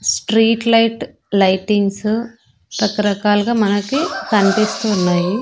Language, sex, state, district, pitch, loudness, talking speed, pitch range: Telugu, female, Andhra Pradesh, Annamaya, 210 Hz, -16 LUFS, 75 wpm, 200-225 Hz